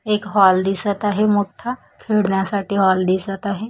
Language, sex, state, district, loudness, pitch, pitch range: Marathi, female, Maharashtra, Mumbai Suburban, -19 LUFS, 200 Hz, 195-210 Hz